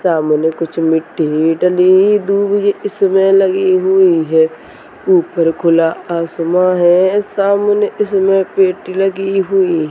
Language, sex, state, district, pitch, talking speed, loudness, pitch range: Hindi, male, Chhattisgarh, Balrampur, 185 Hz, 120 wpm, -13 LUFS, 165-195 Hz